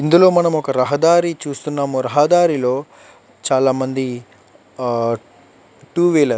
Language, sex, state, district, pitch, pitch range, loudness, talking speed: Telugu, male, Andhra Pradesh, Chittoor, 140 Hz, 125-160 Hz, -17 LUFS, 115 wpm